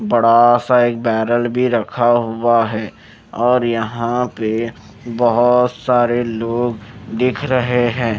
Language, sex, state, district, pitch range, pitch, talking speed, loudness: Hindi, male, Maharashtra, Mumbai Suburban, 115-120 Hz, 120 Hz, 125 wpm, -16 LUFS